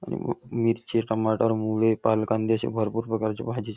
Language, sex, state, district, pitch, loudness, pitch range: Marathi, male, Maharashtra, Nagpur, 110 Hz, -25 LUFS, 110-115 Hz